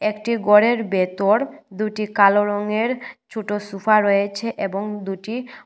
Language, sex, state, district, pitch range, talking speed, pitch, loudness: Bengali, female, Tripura, West Tripura, 200-225 Hz, 115 wpm, 210 Hz, -20 LUFS